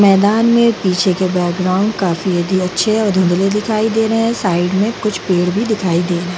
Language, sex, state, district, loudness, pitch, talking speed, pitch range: Hindi, female, Bihar, Jamui, -15 LUFS, 190 Hz, 235 wpm, 180-215 Hz